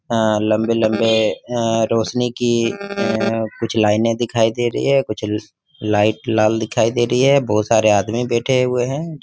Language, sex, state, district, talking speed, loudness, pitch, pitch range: Hindi, male, Jharkhand, Sahebganj, 170 wpm, -18 LUFS, 115 Hz, 110-125 Hz